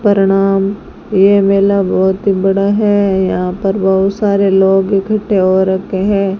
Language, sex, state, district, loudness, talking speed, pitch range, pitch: Hindi, female, Rajasthan, Bikaner, -12 LUFS, 150 wpm, 190-200 Hz, 195 Hz